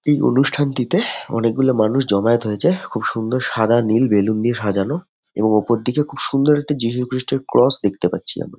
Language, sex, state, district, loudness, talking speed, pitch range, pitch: Bengali, male, West Bengal, Jhargram, -18 LUFS, 180 wpm, 110-145 Hz, 125 Hz